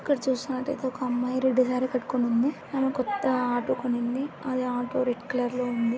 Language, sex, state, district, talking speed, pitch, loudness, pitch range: Telugu, female, Andhra Pradesh, Anantapur, 180 wpm, 255 Hz, -27 LUFS, 245-265 Hz